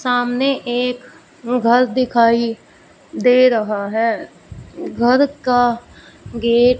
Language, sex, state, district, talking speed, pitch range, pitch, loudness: Hindi, female, Punjab, Fazilka, 95 wpm, 235-250 Hz, 245 Hz, -16 LUFS